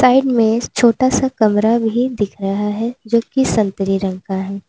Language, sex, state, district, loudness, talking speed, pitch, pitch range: Hindi, female, Uttar Pradesh, Lalitpur, -16 LUFS, 190 wpm, 225 Hz, 200-245 Hz